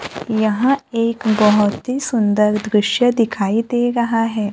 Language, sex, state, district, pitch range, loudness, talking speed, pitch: Hindi, female, Maharashtra, Gondia, 210-240 Hz, -17 LUFS, 130 wpm, 225 Hz